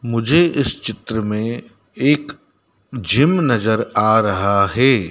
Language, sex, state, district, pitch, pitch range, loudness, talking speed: Hindi, male, Madhya Pradesh, Dhar, 115 Hz, 110-135 Hz, -17 LUFS, 115 wpm